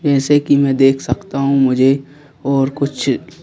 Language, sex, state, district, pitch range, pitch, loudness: Hindi, male, Madhya Pradesh, Bhopal, 135-145 Hz, 140 Hz, -15 LUFS